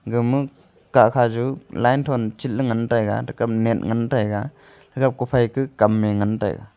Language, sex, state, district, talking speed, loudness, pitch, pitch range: Wancho, male, Arunachal Pradesh, Longding, 140 wpm, -21 LUFS, 115 Hz, 110-130 Hz